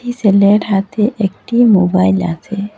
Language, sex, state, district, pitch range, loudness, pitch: Bengali, female, Assam, Hailakandi, 195-215 Hz, -13 LUFS, 200 Hz